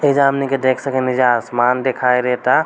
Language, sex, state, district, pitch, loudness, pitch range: Bhojpuri, male, Bihar, East Champaran, 130 Hz, -16 LUFS, 125-135 Hz